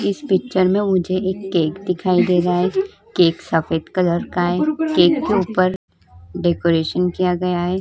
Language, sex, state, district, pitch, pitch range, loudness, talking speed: Hindi, female, Uttar Pradesh, Budaun, 180 Hz, 170-190 Hz, -18 LUFS, 170 wpm